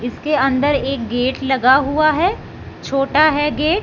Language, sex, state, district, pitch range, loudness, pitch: Hindi, male, Punjab, Fazilka, 265-305 Hz, -16 LUFS, 275 Hz